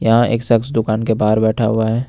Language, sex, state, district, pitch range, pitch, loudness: Hindi, male, Jharkhand, Ranchi, 110-115 Hz, 115 Hz, -16 LUFS